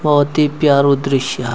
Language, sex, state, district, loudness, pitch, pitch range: Garhwali, male, Uttarakhand, Uttarkashi, -14 LUFS, 140 Hz, 135-150 Hz